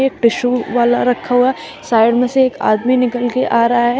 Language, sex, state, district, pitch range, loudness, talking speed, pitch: Hindi, female, Uttar Pradesh, Shamli, 240-255 Hz, -14 LUFS, 225 wpm, 245 Hz